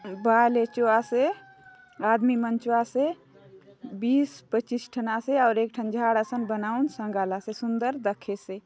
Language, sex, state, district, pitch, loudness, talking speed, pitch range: Halbi, female, Chhattisgarh, Bastar, 235 Hz, -26 LUFS, 140 wpm, 220-250 Hz